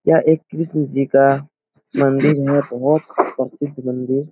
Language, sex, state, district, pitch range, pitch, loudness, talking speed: Hindi, male, Bihar, Supaul, 135-150 Hz, 140 Hz, -18 LUFS, 140 wpm